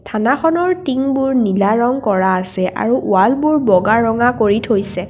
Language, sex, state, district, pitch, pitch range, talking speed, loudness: Assamese, female, Assam, Kamrup Metropolitan, 225 Hz, 200-265 Hz, 140 wpm, -15 LUFS